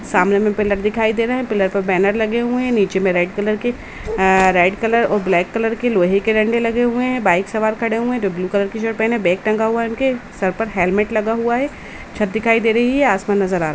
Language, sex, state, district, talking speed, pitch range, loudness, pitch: Hindi, female, Uttar Pradesh, Budaun, 290 wpm, 195-230 Hz, -17 LUFS, 215 Hz